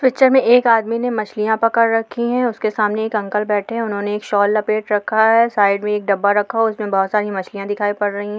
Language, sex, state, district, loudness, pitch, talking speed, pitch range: Hindi, female, Bihar, Saharsa, -17 LUFS, 215 Hz, 255 wpm, 205-230 Hz